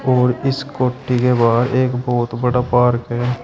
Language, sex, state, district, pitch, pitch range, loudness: Hindi, male, Uttar Pradesh, Shamli, 125 Hz, 120-130 Hz, -17 LUFS